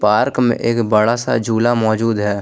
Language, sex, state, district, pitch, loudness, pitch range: Hindi, male, Jharkhand, Ranchi, 115 Hz, -16 LUFS, 105-120 Hz